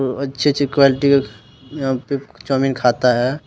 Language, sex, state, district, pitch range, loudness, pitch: Hindi, male, Jharkhand, Deoghar, 130-140 Hz, -17 LUFS, 135 Hz